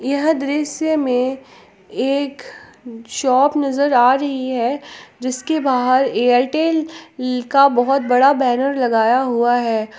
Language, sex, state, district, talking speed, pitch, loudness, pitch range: Hindi, female, Jharkhand, Palamu, 115 wpm, 265 Hz, -17 LUFS, 245-285 Hz